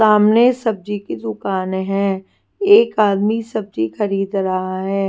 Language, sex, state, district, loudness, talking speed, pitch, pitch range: Hindi, female, Delhi, New Delhi, -17 LUFS, 130 wpm, 200 Hz, 190-220 Hz